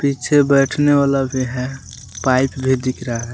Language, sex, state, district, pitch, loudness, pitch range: Hindi, male, Jharkhand, Palamu, 130 Hz, -17 LUFS, 125-140 Hz